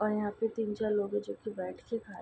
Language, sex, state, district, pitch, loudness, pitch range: Hindi, female, Bihar, Saharsa, 210 Hz, -34 LUFS, 200-220 Hz